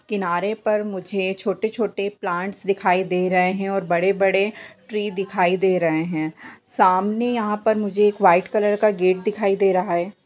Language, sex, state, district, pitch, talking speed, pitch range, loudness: Hindi, female, Bihar, Sitamarhi, 195 Hz, 170 wpm, 185-210 Hz, -21 LUFS